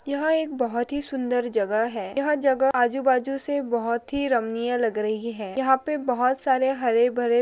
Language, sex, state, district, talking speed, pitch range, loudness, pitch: Hindi, female, Maharashtra, Pune, 170 wpm, 235-275 Hz, -24 LUFS, 250 Hz